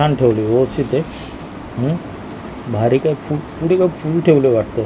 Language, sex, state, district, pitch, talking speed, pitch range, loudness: Marathi, male, Maharashtra, Mumbai Suburban, 140 Hz, 175 wpm, 120-155 Hz, -17 LUFS